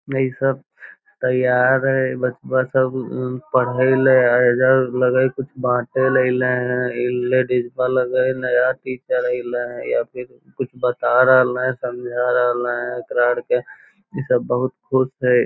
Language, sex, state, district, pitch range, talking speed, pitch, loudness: Magahi, male, Bihar, Lakhisarai, 125-130 Hz, 145 wpm, 125 Hz, -19 LUFS